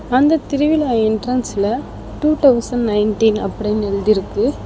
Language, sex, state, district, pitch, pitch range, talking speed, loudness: Tamil, female, Tamil Nadu, Chennai, 230 Hz, 210-270 Hz, 105 wpm, -17 LUFS